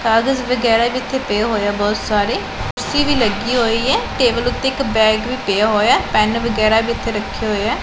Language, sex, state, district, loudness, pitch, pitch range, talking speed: Punjabi, female, Punjab, Pathankot, -17 LUFS, 230 Hz, 215-250 Hz, 220 wpm